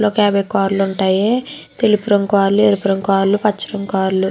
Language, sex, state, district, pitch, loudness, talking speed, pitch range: Telugu, female, Andhra Pradesh, Chittoor, 200 Hz, -16 LUFS, 195 wpm, 195-210 Hz